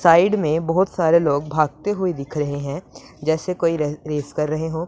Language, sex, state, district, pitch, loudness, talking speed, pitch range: Hindi, female, Punjab, Pathankot, 160 Hz, -21 LUFS, 210 wpm, 150-170 Hz